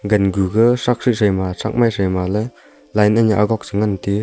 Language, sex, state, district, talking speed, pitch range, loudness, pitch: Wancho, male, Arunachal Pradesh, Longding, 185 wpm, 100-115 Hz, -17 LUFS, 105 Hz